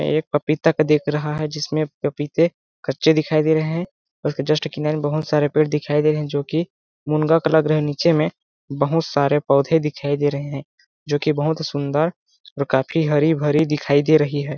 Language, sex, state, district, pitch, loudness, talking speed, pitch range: Hindi, male, Chhattisgarh, Balrampur, 150 Hz, -20 LUFS, 205 wpm, 145-155 Hz